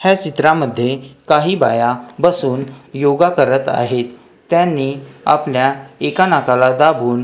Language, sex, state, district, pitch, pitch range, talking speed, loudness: Marathi, male, Maharashtra, Gondia, 135 Hz, 125-155 Hz, 110 wpm, -15 LUFS